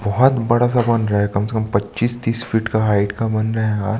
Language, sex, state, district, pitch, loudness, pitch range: Hindi, male, Chhattisgarh, Sukma, 110 Hz, -18 LUFS, 105-115 Hz